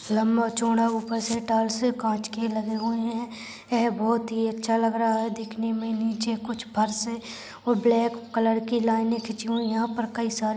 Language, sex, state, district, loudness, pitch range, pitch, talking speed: Hindi, female, Maharashtra, Nagpur, -26 LUFS, 225-230 Hz, 225 Hz, 180 wpm